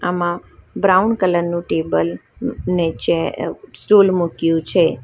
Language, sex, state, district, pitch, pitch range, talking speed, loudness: Gujarati, female, Gujarat, Valsad, 175 Hz, 165-185 Hz, 130 wpm, -18 LUFS